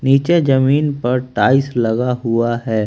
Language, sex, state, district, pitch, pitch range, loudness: Hindi, male, Haryana, Rohtak, 125 Hz, 115-135 Hz, -16 LUFS